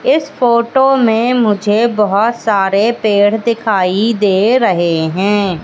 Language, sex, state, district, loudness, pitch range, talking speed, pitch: Hindi, female, Madhya Pradesh, Katni, -12 LUFS, 200-235 Hz, 115 wpm, 220 Hz